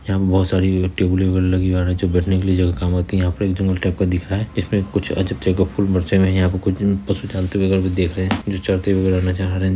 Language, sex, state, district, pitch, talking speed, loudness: Hindi, female, Bihar, Purnia, 95 Hz, 290 wpm, -19 LUFS